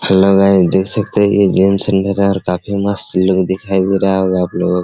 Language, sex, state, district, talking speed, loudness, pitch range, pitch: Hindi, male, Bihar, Araria, 210 wpm, -13 LUFS, 95-100 Hz, 95 Hz